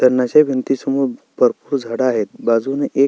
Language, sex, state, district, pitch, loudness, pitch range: Marathi, male, Maharashtra, Sindhudurg, 135 Hz, -17 LUFS, 125-140 Hz